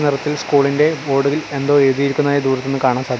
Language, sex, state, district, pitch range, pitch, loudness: Malayalam, male, Kerala, Kasaragod, 135-145 Hz, 140 Hz, -16 LUFS